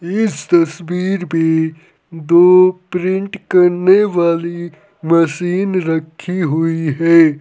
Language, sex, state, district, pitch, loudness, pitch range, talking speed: Hindi, male, Uttar Pradesh, Saharanpur, 175 Hz, -14 LUFS, 165-185 Hz, 90 wpm